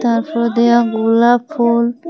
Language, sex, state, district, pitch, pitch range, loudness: Bengali, female, Tripura, West Tripura, 235 Hz, 230-240 Hz, -14 LUFS